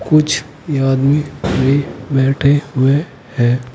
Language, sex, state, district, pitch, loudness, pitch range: Hindi, male, Uttar Pradesh, Saharanpur, 135 Hz, -15 LUFS, 135-145 Hz